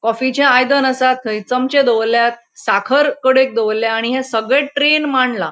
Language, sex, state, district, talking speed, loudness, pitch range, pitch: Konkani, female, Goa, North and South Goa, 165 wpm, -14 LUFS, 230-270 Hz, 255 Hz